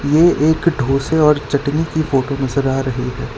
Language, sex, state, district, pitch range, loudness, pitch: Hindi, male, Gujarat, Valsad, 135-155 Hz, -16 LUFS, 140 Hz